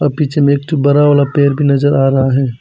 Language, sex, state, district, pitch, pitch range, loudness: Hindi, male, Arunachal Pradesh, Papum Pare, 140 Hz, 135-145 Hz, -12 LUFS